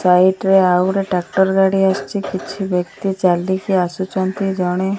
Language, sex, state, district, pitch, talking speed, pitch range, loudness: Odia, female, Odisha, Malkangiri, 190 Hz, 155 wpm, 180-195 Hz, -17 LUFS